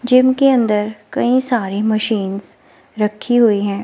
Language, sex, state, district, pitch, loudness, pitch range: Hindi, female, Himachal Pradesh, Shimla, 220 Hz, -16 LUFS, 210-245 Hz